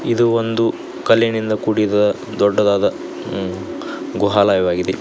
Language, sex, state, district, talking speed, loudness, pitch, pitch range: Kannada, male, Karnataka, Koppal, 85 wpm, -18 LUFS, 110 Hz, 100-115 Hz